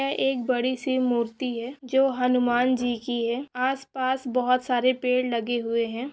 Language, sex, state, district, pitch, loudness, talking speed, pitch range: Hindi, female, Chhattisgarh, Korba, 250 Hz, -25 LUFS, 175 wpm, 240-260 Hz